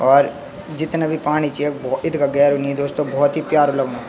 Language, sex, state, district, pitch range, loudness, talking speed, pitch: Garhwali, male, Uttarakhand, Tehri Garhwal, 140-155 Hz, -18 LUFS, 220 wpm, 145 Hz